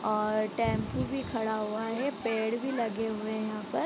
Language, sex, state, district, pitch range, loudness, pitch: Hindi, female, Bihar, Gopalganj, 215-235 Hz, -31 LUFS, 220 Hz